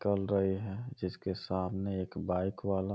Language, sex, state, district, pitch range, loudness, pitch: Hindi, male, Uttar Pradesh, Ghazipur, 95-100 Hz, -35 LUFS, 95 Hz